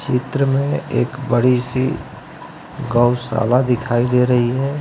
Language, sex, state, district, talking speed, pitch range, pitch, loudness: Hindi, male, Uttar Pradesh, Lucknow, 125 wpm, 120-140 Hz, 125 Hz, -18 LUFS